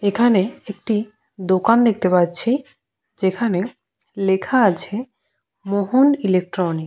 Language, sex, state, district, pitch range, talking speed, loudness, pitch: Bengali, female, West Bengal, Purulia, 185-230 Hz, 95 wpm, -19 LUFS, 205 Hz